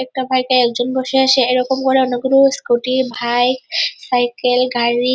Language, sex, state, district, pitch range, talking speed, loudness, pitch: Bengali, female, West Bengal, Purulia, 245-265 Hz, 175 wpm, -15 LUFS, 255 Hz